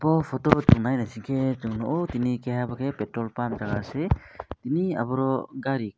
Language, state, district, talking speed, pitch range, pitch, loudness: Kokborok, Tripura, West Tripura, 180 wpm, 120-135 Hz, 125 Hz, -26 LUFS